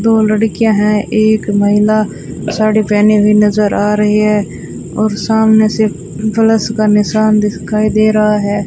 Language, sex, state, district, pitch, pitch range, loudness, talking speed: Hindi, female, Rajasthan, Bikaner, 215 Hz, 210-215 Hz, -12 LUFS, 160 wpm